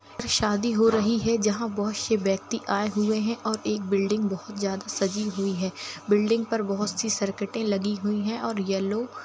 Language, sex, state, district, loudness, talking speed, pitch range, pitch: Hindi, male, Jharkhand, Jamtara, -26 LUFS, 195 wpm, 200-220 Hz, 210 Hz